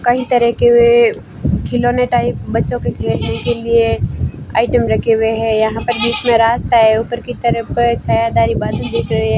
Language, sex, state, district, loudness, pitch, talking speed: Hindi, female, Rajasthan, Barmer, -14 LUFS, 230 Hz, 190 wpm